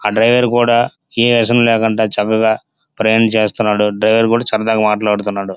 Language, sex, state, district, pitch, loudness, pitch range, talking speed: Telugu, male, Andhra Pradesh, Srikakulam, 110 Hz, -14 LUFS, 105-115 Hz, 140 wpm